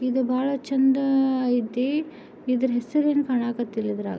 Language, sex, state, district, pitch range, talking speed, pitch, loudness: Kannada, female, Karnataka, Belgaum, 245-270 Hz, 145 wpm, 260 Hz, -24 LUFS